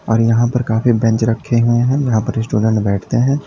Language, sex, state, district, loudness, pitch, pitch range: Hindi, male, Uttar Pradesh, Lalitpur, -15 LUFS, 115 Hz, 110-125 Hz